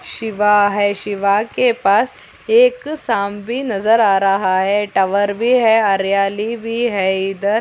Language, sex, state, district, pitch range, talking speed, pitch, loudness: Hindi, female, Chhattisgarh, Korba, 200-230 Hz, 160 wpm, 205 Hz, -16 LUFS